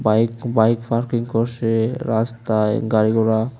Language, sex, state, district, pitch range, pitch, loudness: Bengali, male, Tripura, West Tripura, 110-120 Hz, 115 Hz, -19 LUFS